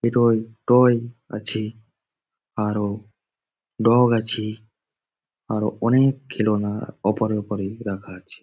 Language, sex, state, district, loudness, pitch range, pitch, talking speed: Bengali, male, West Bengal, Jalpaiguri, -22 LUFS, 105-115 Hz, 110 Hz, 95 wpm